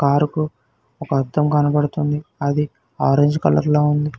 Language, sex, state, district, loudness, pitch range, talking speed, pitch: Telugu, male, Telangana, Hyderabad, -19 LUFS, 145-150 Hz, 145 wpm, 150 Hz